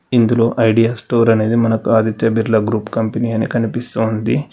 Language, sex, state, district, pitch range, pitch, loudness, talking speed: Telugu, male, Telangana, Hyderabad, 110-115 Hz, 115 Hz, -16 LUFS, 145 wpm